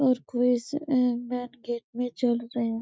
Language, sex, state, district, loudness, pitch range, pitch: Hindi, female, Chhattisgarh, Bastar, -28 LUFS, 240-250 Hz, 245 Hz